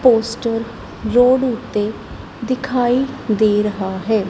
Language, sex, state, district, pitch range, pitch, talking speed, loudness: Punjabi, female, Punjab, Kapurthala, 215-250 Hz, 230 Hz, 100 wpm, -18 LUFS